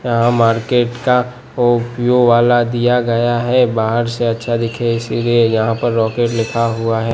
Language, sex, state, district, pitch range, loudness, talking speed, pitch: Hindi, male, Gujarat, Gandhinagar, 115-120 Hz, -15 LUFS, 150 wpm, 120 Hz